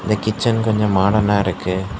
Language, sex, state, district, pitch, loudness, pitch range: Tamil, male, Tamil Nadu, Kanyakumari, 105 Hz, -18 LUFS, 95-110 Hz